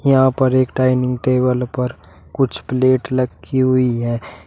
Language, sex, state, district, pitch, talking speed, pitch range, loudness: Hindi, male, Uttar Pradesh, Shamli, 130 Hz, 150 wpm, 125-130 Hz, -17 LUFS